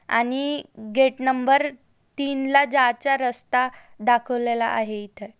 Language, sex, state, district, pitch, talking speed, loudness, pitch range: Marathi, female, Maharashtra, Aurangabad, 255 Hz, 110 wpm, -22 LUFS, 235-275 Hz